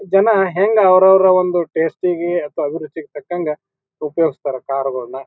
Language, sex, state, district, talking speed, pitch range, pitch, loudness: Kannada, male, Karnataka, Bijapur, 150 wpm, 145-185 Hz, 165 Hz, -16 LUFS